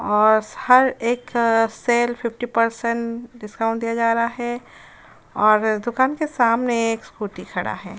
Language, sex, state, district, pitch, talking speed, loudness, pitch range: Hindi, female, Uttar Pradesh, Jyotiba Phule Nagar, 230 Hz, 150 wpm, -20 LUFS, 225-240 Hz